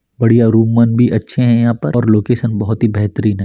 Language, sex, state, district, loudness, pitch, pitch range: Hindi, male, Chhattisgarh, Bastar, -13 LUFS, 115 Hz, 110-120 Hz